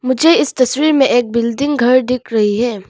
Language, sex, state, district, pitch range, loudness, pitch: Hindi, female, Arunachal Pradesh, Longding, 235-275 Hz, -14 LUFS, 250 Hz